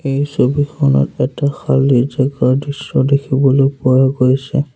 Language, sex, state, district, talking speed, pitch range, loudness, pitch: Assamese, male, Assam, Sonitpur, 115 wpm, 130-140 Hz, -15 LUFS, 135 Hz